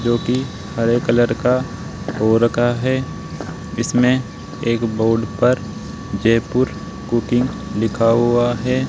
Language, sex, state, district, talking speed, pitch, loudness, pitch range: Hindi, male, Rajasthan, Jaipur, 110 wpm, 120 Hz, -18 LUFS, 115-125 Hz